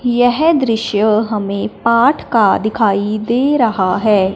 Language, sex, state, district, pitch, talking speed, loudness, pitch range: Hindi, male, Punjab, Fazilka, 215 Hz, 125 wpm, -14 LUFS, 205-240 Hz